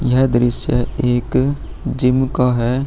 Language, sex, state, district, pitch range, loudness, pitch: Hindi, female, Bihar, Vaishali, 120-130 Hz, -17 LUFS, 125 Hz